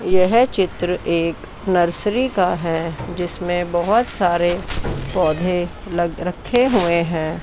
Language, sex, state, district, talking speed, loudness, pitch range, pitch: Hindi, female, Chandigarh, Chandigarh, 115 wpm, -19 LUFS, 170-190 Hz, 175 Hz